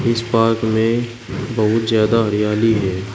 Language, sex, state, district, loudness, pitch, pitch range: Hindi, male, Uttar Pradesh, Shamli, -17 LUFS, 115 Hz, 105-115 Hz